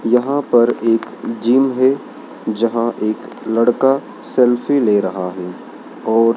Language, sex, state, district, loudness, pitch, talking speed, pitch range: Hindi, male, Madhya Pradesh, Dhar, -17 LUFS, 115 Hz, 120 wpm, 110-130 Hz